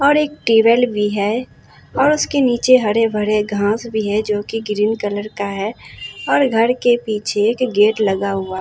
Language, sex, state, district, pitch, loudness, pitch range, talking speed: Hindi, female, Bihar, Katihar, 215 Hz, -17 LUFS, 210-240 Hz, 180 wpm